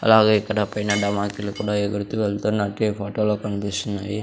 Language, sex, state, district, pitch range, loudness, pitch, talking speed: Telugu, male, Andhra Pradesh, Sri Satya Sai, 100-105 Hz, -22 LUFS, 105 Hz, 140 wpm